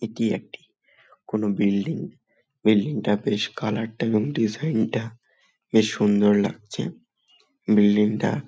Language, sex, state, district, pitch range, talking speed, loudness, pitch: Bengali, male, West Bengal, Malda, 105-110 Hz, 120 wpm, -23 LUFS, 110 Hz